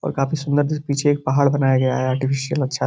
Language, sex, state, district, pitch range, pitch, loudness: Hindi, male, Uttar Pradesh, Gorakhpur, 130-145 Hz, 140 Hz, -20 LUFS